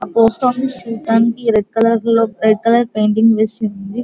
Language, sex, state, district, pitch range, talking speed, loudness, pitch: Telugu, female, Andhra Pradesh, Guntur, 220-230 Hz, 180 wpm, -15 LUFS, 225 Hz